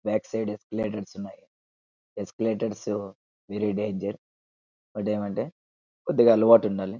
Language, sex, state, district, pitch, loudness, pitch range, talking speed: Telugu, male, Andhra Pradesh, Anantapur, 105 Hz, -26 LUFS, 100-110 Hz, 95 wpm